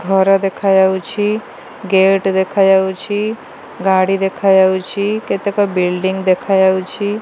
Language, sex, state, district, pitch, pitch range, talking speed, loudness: Odia, female, Odisha, Malkangiri, 195 Hz, 190-200 Hz, 75 wpm, -15 LUFS